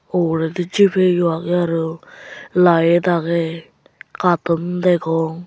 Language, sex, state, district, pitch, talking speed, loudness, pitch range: Chakma, male, Tripura, Unakoti, 175 Hz, 100 wpm, -17 LUFS, 165-180 Hz